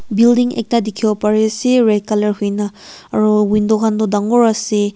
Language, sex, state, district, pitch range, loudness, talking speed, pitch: Nagamese, female, Nagaland, Kohima, 210-230 Hz, -15 LUFS, 170 wpm, 215 Hz